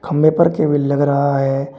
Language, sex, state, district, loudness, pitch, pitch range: Hindi, male, Uttar Pradesh, Shamli, -15 LUFS, 145 Hz, 140-155 Hz